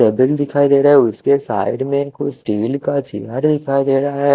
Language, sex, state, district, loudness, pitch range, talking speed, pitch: Hindi, male, Chandigarh, Chandigarh, -16 LUFS, 130-140 Hz, 195 wpm, 140 Hz